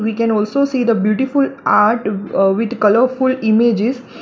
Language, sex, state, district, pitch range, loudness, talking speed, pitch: English, female, Gujarat, Valsad, 210-255 Hz, -15 LUFS, 155 wpm, 230 Hz